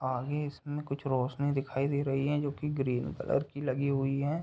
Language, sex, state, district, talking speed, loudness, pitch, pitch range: Hindi, male, Uttar Pradesh, Ghazipur, 215 wpm, -32 LUFS, 140 Hz, 135-145 Hz